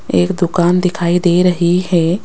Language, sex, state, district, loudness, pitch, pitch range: Hindi, female, Rajasthan, Jaipur, -14 LUFS, 175 Hz, 175-180 Hz